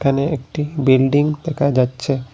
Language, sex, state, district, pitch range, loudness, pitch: Bengali, male, Assam, Hailakandi, 130-150 Hz, -18 LUFS, 140 Hz